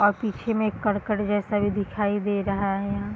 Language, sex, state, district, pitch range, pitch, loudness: Hindi, female, Bihar, East Champaran, 200-210 Hz, 205 Hz, -25 LUFS